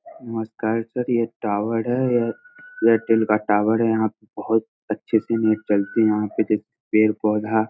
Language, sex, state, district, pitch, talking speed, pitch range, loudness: Hindi, male, Bihar, Samastipur, 110 Hz, 185 wpm, 105-115 Hz, -21 LUFS